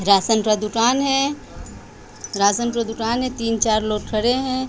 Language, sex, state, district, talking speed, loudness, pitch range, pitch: Hindi, female, Bihar, Patna, 165 wpm, -20 LUFS, 200-240 Hz, 225 Hz